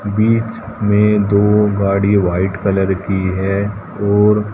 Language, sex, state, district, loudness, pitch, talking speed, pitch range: Hindi, male, Haryana, Jhajjar, -15 LUFS, 100 Hz, 120 wpm, 100-105 Hz